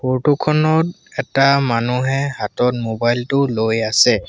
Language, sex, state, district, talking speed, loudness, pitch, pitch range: Assamese, male, Assam, Sonitpur, 125 wpm, -17 LUFS, 130 Hz, 115-140 Hz